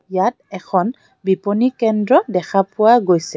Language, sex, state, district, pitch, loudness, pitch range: Assamese, female, Assam, Kamrup Metropolitan, 205 Hz, -17 LUFS, 190-240 Hz